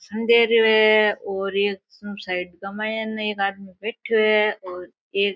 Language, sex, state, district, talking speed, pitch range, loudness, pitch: Rajasthani, female, Rajasthan, Nagaur, 180 wpm, 195-220 Hz, -21 LUFS, 205 Hz